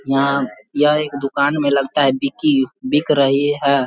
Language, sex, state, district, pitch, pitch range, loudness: Hindi, male, Bihar, Vaishali, 140 Hz, 135-150 Hz, -17 LUFS